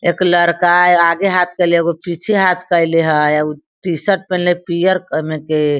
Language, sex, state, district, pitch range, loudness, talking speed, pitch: Hindi, female, Bihar, Sitamarhi, 160-180 Hz, -14 LUFS, 185 wpm, 175 Hz